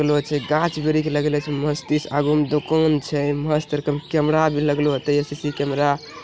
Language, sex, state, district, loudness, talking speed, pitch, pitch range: Angika, male, Bihar, Bhagalpur, -21 LUFS, 210 wpm, 150 Hz, 145-150 Hz